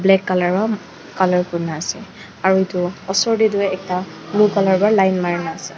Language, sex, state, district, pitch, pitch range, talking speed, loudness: Nagamese, female, Nagaland, Dimapur, 190 Hz, 180-200 Hz, 165 wpm, -18 LUFS